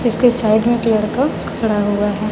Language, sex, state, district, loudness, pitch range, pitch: Hindi, female, Chhattisgarh, Raipur, -16 LUFS, 210-235 Hz, 220 Hz